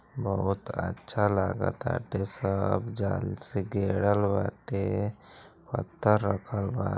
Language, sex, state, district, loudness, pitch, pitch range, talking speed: Bhojpuri, male, Uttar Pradesh, Gorakhpur, -29 LUFS, 100 Hz, 100-115 Hz, 95 wpm